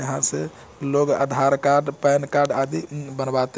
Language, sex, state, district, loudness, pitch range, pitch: Hindi, male, Bihar, Muzaffarpur, -21 LUFS, 135-145 Hz, 140 Hz